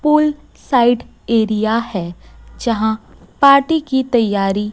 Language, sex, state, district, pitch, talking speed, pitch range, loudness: Hindi, female, Chhattisgarh, Raipur, 235 Hz, 100 wpm, 215-275 Hz, -16 LUFS